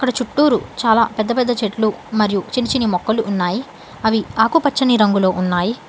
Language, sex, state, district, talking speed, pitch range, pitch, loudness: Telugu, female, Telangana, Hyderabad, 140 wpm, 210-250 Hz, 220 Hz, -17 LUFS